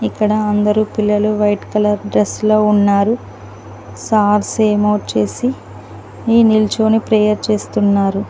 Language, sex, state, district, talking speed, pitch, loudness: Telugu, female, Telangana, Mahabubabad, 110 wpm, 210 Hz, -15 LUFS